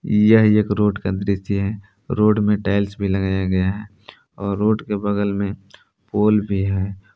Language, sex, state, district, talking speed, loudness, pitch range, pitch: Hindi, male, Jharkhand, Palamu, 175 wpm, -19 LUFS, 100-105 Hz, 100 Hz